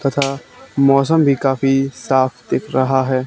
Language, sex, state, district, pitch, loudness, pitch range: Hindi, male, Haryana, Charkhi Dadri, 135 Hz, -16 LUFS, 130-140 Hz